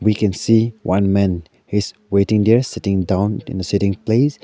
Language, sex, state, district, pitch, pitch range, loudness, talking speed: English, male, Arunachal Pradesh, Lower Dibang Valley, 105 Hz, 95-115 Hz, -18 LUFS, 190 wpm